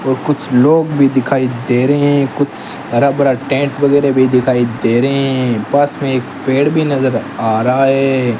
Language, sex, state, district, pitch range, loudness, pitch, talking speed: Hindi, male, Rajasthan, Bikaner, 125-140 Hz, -13 LUFS, 135 Hz, 195 wpm